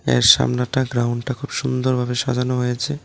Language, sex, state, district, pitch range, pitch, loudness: Bengali, male, Tripura, West Tripura, 125-130 Hz, 125 Hz, -19 LUFS